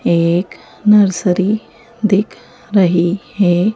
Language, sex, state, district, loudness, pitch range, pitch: Hindi, female, Madhya Pradesh, Bhopal, -15 LUFS, 180-215 Hz, 200 Hz